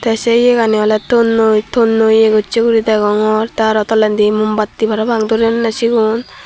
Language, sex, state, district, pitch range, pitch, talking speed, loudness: Chakma, female, Tripura, Dhalai, 215-230 Hz, 220 Hz, 165 wpm, -13 LUFS